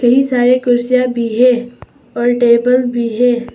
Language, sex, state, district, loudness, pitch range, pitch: Hindi, female, Arunachal Pradesh, Papum Pare, -13 LUFS, 240-250 Hz, 245 Hz